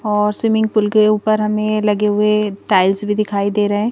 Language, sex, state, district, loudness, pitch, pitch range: Hindi, female, Madhya Pradesh, Bhopal, -16 LUFS, 210 Hz, 205-215 Hz